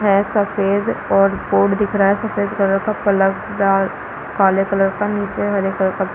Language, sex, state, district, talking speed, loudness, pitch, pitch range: Hindi, female, Chhattisgarh, Balrampur, 195 wpm, -17 LUFS, 200 Hz, 195-205 Hz